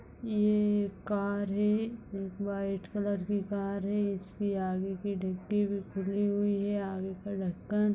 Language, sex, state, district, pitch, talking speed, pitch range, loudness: Hindi, female, Uttar Pradesh, Etah, 200 Hz, 165 wpm, 195-205 Hz, -32 LUFS